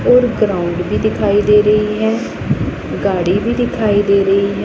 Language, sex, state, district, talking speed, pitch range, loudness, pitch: Hindi, female, Punjab, Pathankot, 170 wpm, 195-215 Hz, -15 LUFS, 205 Hz